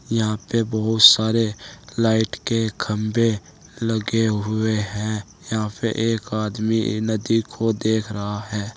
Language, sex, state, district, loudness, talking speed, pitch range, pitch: Hindi, male, Uttar Pradesh, Saharanpur, -21 LUFS, 130 wpm, 105-115 Hz, 110 Hz